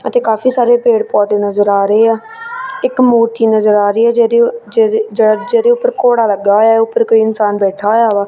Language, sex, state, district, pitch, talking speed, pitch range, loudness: Punjabi, female, Punjab, Kapurthala, 225 Hz, 210 wpm, 210-240 Hz, -11 LUFS